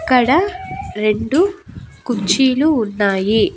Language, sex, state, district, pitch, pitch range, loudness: Telugu, female, Andhra Pradesh, Annamaya, 250 Hz, 215-320 Hz, -16 LUFS